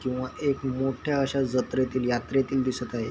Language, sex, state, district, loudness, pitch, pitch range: Marathi, male, Maharashtra, Chandrapur, -27 LUFS, 130 Hz, 125-135 Hz